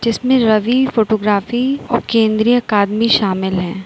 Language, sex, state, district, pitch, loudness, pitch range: Hindi, female, Uttar Pradesh, Lucknow, 220 Hz, -15 LUFS, 205-245 Hz